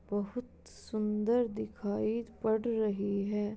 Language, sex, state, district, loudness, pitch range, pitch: Hindi, female, Uttar Pradesh, Jalaun, -33 LUFS, 205-225 Hz, 215 Hz